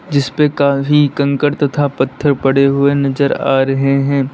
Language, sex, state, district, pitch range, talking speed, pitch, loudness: Hindi, male, Uttar Pradesh, Lalitpur, 135-145 Hz, 150 wpm, 140 Hz, -14 LUFS